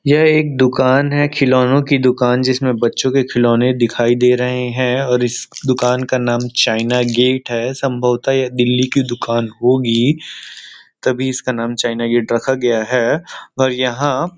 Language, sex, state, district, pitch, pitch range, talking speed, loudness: Hindi, male, Chhattisgarh, Rajnandgaon, 125 Hz, 120-130 Hz, 165 wpm, -15 LUFS